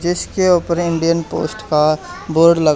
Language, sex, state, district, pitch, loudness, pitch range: Hindi, male, Haryana, Charkhi Dadri, 170 Hz, -16 LUFS, 155-175 Hz